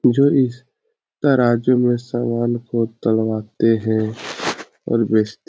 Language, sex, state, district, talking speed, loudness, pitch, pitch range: Hindi, male, Uttar Pradesh, Etah, 120 wpm, -19 LUFS, 120 Hz, 110-125 Hz